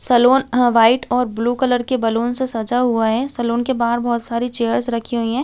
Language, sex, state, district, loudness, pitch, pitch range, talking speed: Hindi, female, Chhattisgarh, Balrampur, -17 LUFS, 240 Hz, 235-250 Hz, 230 wpm